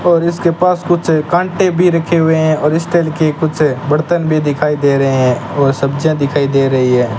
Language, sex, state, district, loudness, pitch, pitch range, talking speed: Hindi, male, Rajasthan, Bikaner, -13 LUFS, 155 Hz, 140-170 Hz, 215 wpm